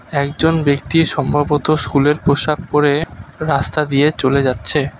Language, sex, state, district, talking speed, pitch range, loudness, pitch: Bengali, male, West Bengal, Alipurduar, 120 wpm, 140-150 Hz, -16 LUFS, 145 Hz